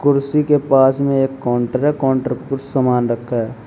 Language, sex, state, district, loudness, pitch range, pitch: Hindi, male, Uttar Pradesh, Shamli, -17 LUFS, 125-140 Hz, 135 Hz